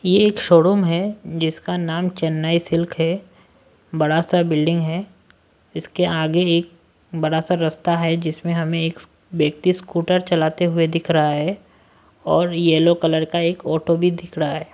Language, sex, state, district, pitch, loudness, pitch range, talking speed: Hindi, male, Maharashtra, Washim, 170 Hz, -19 LUFS, 160-175 Hz, 165 wpm